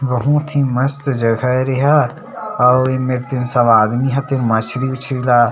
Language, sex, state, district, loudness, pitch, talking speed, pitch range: Chhattisgarhi, male, Chhattisgarh, Sarguja, -15 LUFS, 130 Hz, 195 wpm, 125-135 Hz